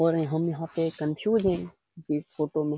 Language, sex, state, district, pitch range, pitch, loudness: Hindi, male, Bihar, Jamui, 150-170 Hz, 165 Hz, -28 LUFS